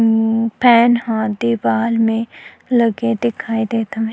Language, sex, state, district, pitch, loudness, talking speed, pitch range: Chhattisgarhi, female, Chhattisgarh, Sukma, 225 Hz, -16 LUFS, 130 wpm, 225-235 Hz